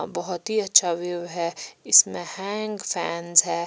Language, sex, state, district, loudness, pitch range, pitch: Hindi, female, Chhattisgarh, Raipur, -22 LUFS, 170-200 Hz, 175 Hz